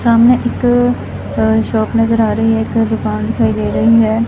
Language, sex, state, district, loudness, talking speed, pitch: Punjabi, female, Punjab, Fazilka, -13 LUFS, 180 wpm, 215 Hz